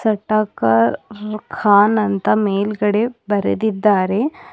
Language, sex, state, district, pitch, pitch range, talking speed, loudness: Kannada, female, Karnataka, Bidar, 210 Hz, 200-220 Hz, 65 wpm, -17 LUFS